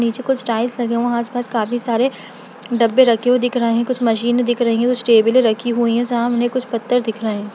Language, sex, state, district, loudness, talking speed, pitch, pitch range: Hindi, female, Bihar, Lakhisarai, -17 LUFS, 255 wpm, 240 Hz, 230-245 Hz